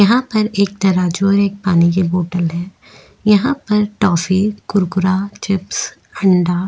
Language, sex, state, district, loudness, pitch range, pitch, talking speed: Hindi, female, Uttar Pradesh, Jyotiba Phule Nagar, -16 LUFS, 180-205 Hz, 195 Hz, 145 wpm